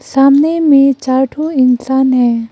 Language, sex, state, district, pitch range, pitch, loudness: Hindi, female, Arunachal Pradesh, Papum Pare, 255-280 Hz, 265 Hz, -11 LUFS